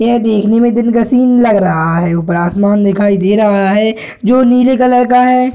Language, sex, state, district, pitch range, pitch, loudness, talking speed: Hindi, male, Bihar, Gaya, 200-245 Hz, 220 Hz, -10 LUFS, 215 wpm